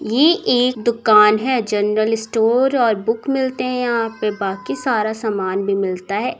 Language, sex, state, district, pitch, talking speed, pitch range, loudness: Hindi, female, Bihar, Muzaffarpur, 225 Hz, 160 wpm, 210-250 Hz, -18 LUFS